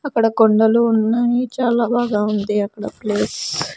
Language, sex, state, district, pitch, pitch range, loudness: Telugu, female, Andhra Pradesh, Sri Satya Sai, 220 Hz, 210-235 Hz, -18 LUFS